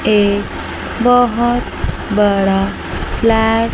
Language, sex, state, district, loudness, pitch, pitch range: Hindi, female, Chandigarh, Chandigarh, -15 LUFS, 225 Hz, 200-230 Hz